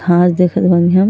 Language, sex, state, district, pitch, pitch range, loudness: Bhojpuri, female, Uttar Pradesh, Ghazipur, 180 Hz, 175-180 Hz, -12 LUFS